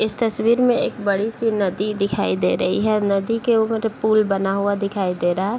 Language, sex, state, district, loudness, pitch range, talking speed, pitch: Hindi, female, Bihar, Bhagalpur, -20 LUFS, 195-225 Hz, 215 wpm, 205 Hz